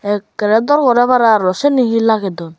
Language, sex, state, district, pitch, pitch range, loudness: Chakma, male, Tripura, Unakoti, 220 Hz, 205-245 Hz, -13 LUFS